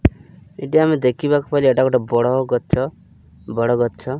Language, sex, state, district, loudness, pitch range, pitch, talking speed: Odia, male, Odisha, Malkangiri, -18 LUFS, 120-145 Hz, 130 Hz, 145 wpm